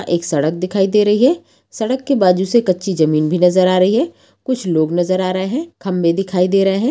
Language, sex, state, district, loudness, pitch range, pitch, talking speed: Hindi, female, Bihar, Purnia, -16 LUFS, 180-225 Hz, 185 Hz, 245 wpm